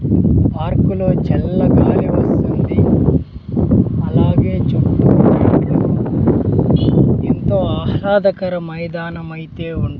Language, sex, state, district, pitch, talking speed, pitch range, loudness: Telugu, male, Andhra Pradesh, Sri Satya Sai, 160 Hz, 70 wpm, 110-170 Hz, -15 LUFS